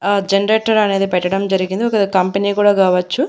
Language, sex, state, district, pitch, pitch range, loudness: Telugu, female, Andhra Pradesh, Annamaya, 200 Hz, 190-205 Hz, -15 LUFS